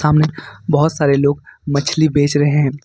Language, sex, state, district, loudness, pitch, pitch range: Hindi, male, Jharkhand, Ranchi, -16 LUFS, 145 Hz, 140-155 Hz